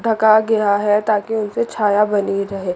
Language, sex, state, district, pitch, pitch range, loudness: Hindi, female, Chandigarh, Chandigarh, 210 Hz, 205-220 Hz, -17 LUFS